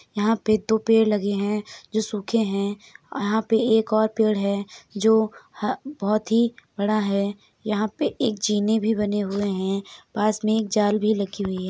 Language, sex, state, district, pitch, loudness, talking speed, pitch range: Hindi, female, Uttar Pradesh, Etah, 215 Hz, -23 LUFS, 195 wpm, 205-220 Hz